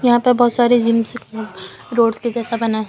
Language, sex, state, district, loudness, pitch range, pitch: Hindi, female, Uttar Pradesh, Lucknow, -16 LUFS, 225-240 Hz, 235 Hz